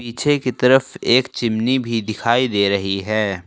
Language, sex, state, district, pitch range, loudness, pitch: Hindi, male, Jharkhand, Ranchi, 105-125 Hz, -18 LUFS, 115 Hz